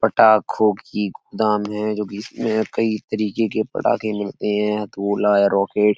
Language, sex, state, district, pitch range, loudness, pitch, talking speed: Hindi, male, Uttar Pradesh, Etah, 105-110 Hz, -20 LUFS, 105 Hz, 160 wpm